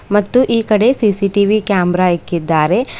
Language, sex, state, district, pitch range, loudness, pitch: Kannada, female, Karnataka, Bidar, 180-215 Hz, -14 LUFS, 200 Hz